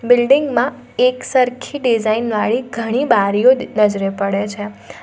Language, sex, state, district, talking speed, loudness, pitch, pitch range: Gujarati, female, Gujarat, Valsad, 120 wpm, -16 LUFS, 235 Hz, 210-255 Hz